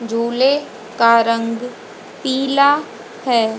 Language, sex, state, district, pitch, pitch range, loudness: Hindi, female, Haryana, Jhajjar, 240 Hz, 230-270 Hz, -16 LUFS